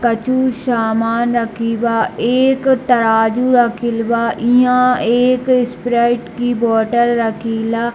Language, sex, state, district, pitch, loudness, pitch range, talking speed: Hindi, male, Bihar, Darbhanga, 235 Hz, -15 LUFS, 230-245 Hz, 115 wpm